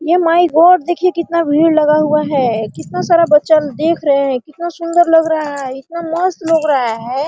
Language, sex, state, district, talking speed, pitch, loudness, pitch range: Hindi, female, Bihar, Araria, 205 wpm, 315 Hz, -13 LUFS, 280-335 Hz